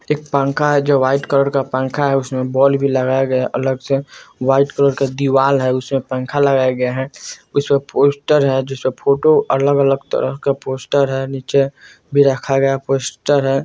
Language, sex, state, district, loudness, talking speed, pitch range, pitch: Bajjika, male, Bihar, Vaishali, -16 LUFS, 195 wpm, 130-140 Hz, 135 Hz